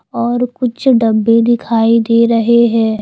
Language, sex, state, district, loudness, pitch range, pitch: Hindi, female, Himachal Pradesh, Shimla, -12 LUFS, 230-240 Hz, 230 Hz